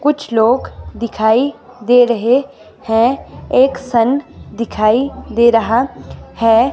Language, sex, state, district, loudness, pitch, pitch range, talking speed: Hindi, female, Himachal Pradesh, Shimla, -14 LUFS, 235 Hz, 225-265 Hz, 105 wpm